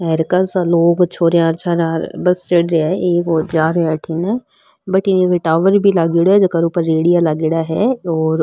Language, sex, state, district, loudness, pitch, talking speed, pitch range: Marwari, female, Rajasthan, Nagaur, -15 LUFS, 170 Hz, 190 wpm, 165-180 Hz